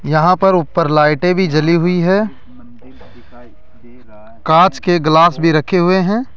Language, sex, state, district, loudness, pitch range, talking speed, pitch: Hindi, male, Rajasthan, Jaipur, -13 LUFS, 130-180 Hz, 140 wpm, 165 Hz